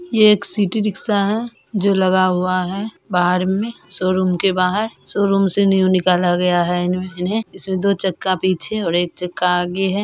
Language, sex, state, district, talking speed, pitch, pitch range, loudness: Hindi, female, Bihar, Purnia, 185 wpm, 185 Hz, 180-200 Hz, -18 LUFS